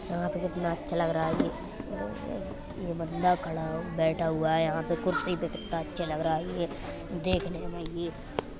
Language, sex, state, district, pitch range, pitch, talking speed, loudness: Hindi, male, Uttar Pradesh, Etah, 160-175 Hz, 165 Hz, 195 wpm, -31 LUFS